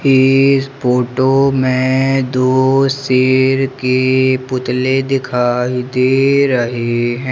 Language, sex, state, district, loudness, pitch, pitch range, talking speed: Hindi, male, Madhya Pradesh, Umaria, -14 LUFS, 130 Hz, 125-135 Hz, 90 wpm